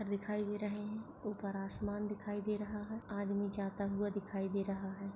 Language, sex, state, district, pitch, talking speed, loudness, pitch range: Hindi, female, Maharashtra, Solapur, 205 Hz, 210 wpm, -40 LUFS, 200-210 Hz